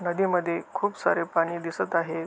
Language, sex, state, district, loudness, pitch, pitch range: Marathi, male, Maharashtra, Aurangabad, -27 LUFS, 170 Hz, 165-190 Hz